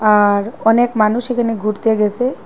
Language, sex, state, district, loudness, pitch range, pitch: Bengali, female, Assam, Hailakandi, -15 LUFS, 210-240 Hz, 220 Hz